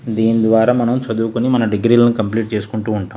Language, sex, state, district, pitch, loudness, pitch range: Telugu, male, Andhra Pradesh, Krishna, 115 Hz, -16 LUFS, 110-120 Hz